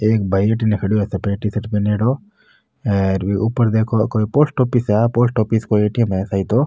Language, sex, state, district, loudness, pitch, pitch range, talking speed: Marwari, male, Rajasthan, Nagaur, -18 LUFS, 110 Hz, 100-115 Hz, 215 wpm